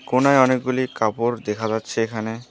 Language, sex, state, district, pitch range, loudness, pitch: Bengali, female, West Bengal, Alipurduar, 110-130 Hz, -21 LUFS, 115 Hz